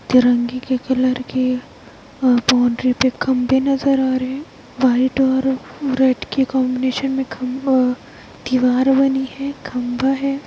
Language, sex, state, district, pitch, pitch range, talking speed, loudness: Hindi, female, Bihar, Begusarai, 260 Hz, 255-265 Hz, 145 wpm, -18 LUFS